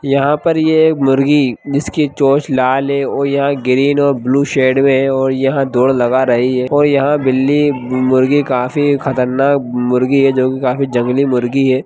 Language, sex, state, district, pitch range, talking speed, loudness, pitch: Hindi, male, Bihar, Lakhisarai, 130-140 Hz, 180 wpm, -13 LUFS, 135 Hz